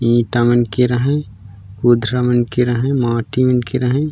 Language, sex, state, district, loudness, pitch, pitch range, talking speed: Chhattisgarhi, male, Chhattisgarh, Raigarh, -16 LUFS, 120 Hz, 120-125 Hz, 190 wpm